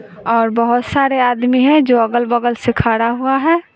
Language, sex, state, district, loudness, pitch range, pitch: Hindi, female, Bihar, West Champaran, -14 LUFS, 230-265 Hz, 240 Hz